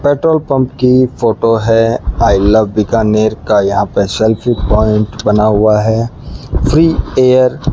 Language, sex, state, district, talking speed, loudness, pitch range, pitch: Hindi, male, Rajasthan, Bikaner, 145 wpm, -11 LUFS, 105-130 Hz, 115 Hz